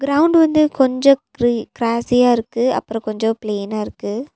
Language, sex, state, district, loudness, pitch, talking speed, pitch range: Tamil, female, Tamil Nadu, Nilgiris, -17 LUFS, 240 Hz, 140 wpm, 225-275 Hz